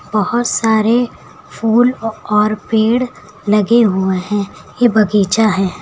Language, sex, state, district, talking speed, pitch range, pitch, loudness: Hindi, female, Uttar Pradesh, Lucknow, 115 wpm, 205-230 Hz, 215 Hz, -14 LUFS